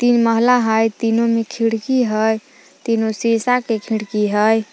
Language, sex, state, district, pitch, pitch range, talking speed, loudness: Magahi, female, Jharkhand, Palamu, 225 Hz, 220-235 Hz, 150 wpm, -17 LUFS